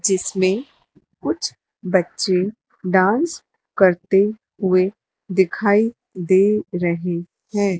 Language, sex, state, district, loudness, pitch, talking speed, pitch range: Hindi, female, Madhya Pradesh, Dhar, -20 LUFS, 190 Hz, 75 wpm, 185-210 Hz